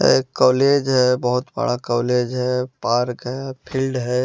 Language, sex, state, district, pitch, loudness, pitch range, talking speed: Hindi, male, Bihar, West Champaran, 125 Hz, -20 LUFS, 125-130 Hz, 155 wpm